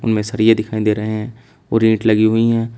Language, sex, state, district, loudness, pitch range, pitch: Hindi, male, Uttar Pradesh, Shamli, -16 LUFS, 110-115 Hz, 110 Hz